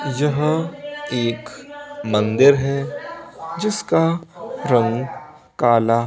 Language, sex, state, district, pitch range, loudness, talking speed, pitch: Hindi, male, Bihar, Begusarai, 120-170 Hz, -19 LUFS, 70 wpm, 145 Hz